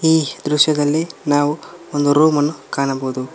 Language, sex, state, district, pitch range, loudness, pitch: Kannada, male, Karnataka, Koppal, 145-155 Hz, -17 LUFS, 145 Hz